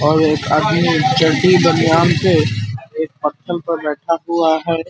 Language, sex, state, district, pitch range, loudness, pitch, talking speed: Hindi, male, Uttar Pradesh, Ghazipur, 150-165 Hz, -15 LUFS, 160 Hz, 160 wpm